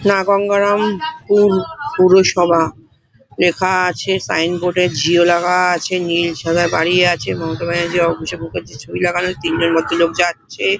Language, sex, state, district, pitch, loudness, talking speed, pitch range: Bengali, female, West Bengal, Paschim Medinipur, 175 Hz, -15 LUFS, 160 wpm, 165-185 Hz